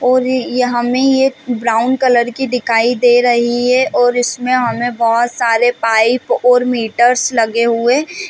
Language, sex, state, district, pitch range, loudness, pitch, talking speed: Hindi, female, Chhattisgarh, Balrampur, 235-255 Hz, -13 LUFS, 245 Hz, 165 wpm